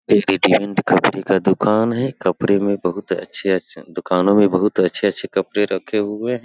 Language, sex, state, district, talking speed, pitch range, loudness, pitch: Hindi, male, Bihar, Sitamarhi, 160 wpm, 95-105 Hz, -18 LUFS, 100 Hz